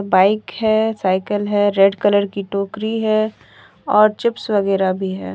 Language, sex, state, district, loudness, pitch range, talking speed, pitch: Hindi, female, Jharkhand, Deoghar, -17 LUFS, 195-215 Hz, 155 wpm, 205 Hz